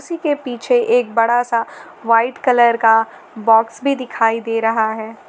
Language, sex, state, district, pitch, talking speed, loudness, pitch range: Hindi, female, Jharkhand, Garhwa, 230 Hz, 170 wpm, -16 LUFS, 225-250 Hz